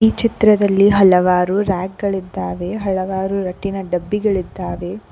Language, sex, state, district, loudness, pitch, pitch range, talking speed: Kannada, female, Karnataka, Koppal, -17 LUFS, 195 Hz, 180-205 Hz, 70 wpm